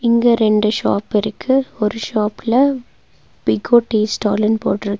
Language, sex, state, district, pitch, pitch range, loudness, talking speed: Tamil, female, Tamil Nadu, Nilgiris, 215 Hz, 210-240 Hz, -17 LUFS, 120 wpm